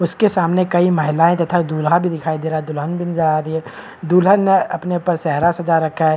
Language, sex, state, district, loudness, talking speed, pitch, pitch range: Hindi, male, Bihar, Kishanganj, -17 LUFS, 245 wpm, 170 Hz, 160-175 Hz